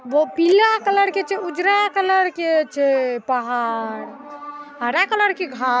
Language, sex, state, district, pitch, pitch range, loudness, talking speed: Maithili, female, Bihar, Saharsa, 310 Hz, 255-390 Hz, -19 LUFS, 145 wpm